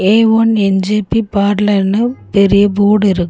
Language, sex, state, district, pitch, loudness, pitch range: Tamil, female, Tamil Nadu, Chennai, 205 Hz, -12 LUFS, 200-215 Hz